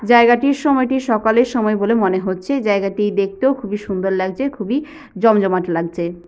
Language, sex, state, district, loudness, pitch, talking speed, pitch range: Bengali, female, West Bengal, Paschim Medinipur, -17 LUFS, 215 Hz, 125 wpm, 190-260 Hz